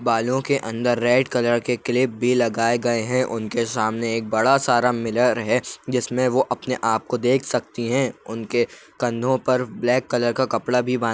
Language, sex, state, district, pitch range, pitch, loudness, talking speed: Kumaoni, male, Uttarakhand, Uttarkashi, 115-125 Hz, 120 Hz, -21 LUFS, 195 wpm